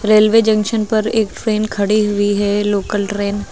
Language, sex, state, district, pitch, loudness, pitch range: Hindi, female, Uttar Pradesh, Lucknow, 210 Hz, -16 LUFS, 205-220 Hz